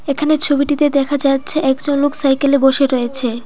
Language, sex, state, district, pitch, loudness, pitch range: Bengali, female, Tripura, Dhalai, 280 Hz, -14 LUFS, 270-290 Hz